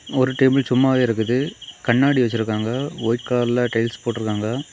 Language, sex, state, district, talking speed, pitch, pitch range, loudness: Tamil, male, Tamil Nadu, Kanyakumari, 125 wpm, 120 Hz, 115-130 Hz, -20 LUFS